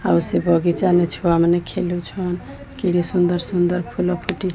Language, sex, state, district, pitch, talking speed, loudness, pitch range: Odia, female, Odisha, Sambalpur, 175 Hz, 145 wpm, -20 LUFS, 175-180 Hz